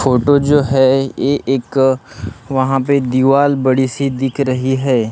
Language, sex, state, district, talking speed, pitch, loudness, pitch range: Hindi, male, Maharashtra, Gondia, 150 wpm, 135 Hz, -14 LUFS, 130-140 Hz